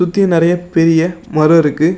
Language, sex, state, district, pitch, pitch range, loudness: Tamil, male, Tamil Nadu, Namakkal, 165 Hz, 165-175 Hz, -12 LUFS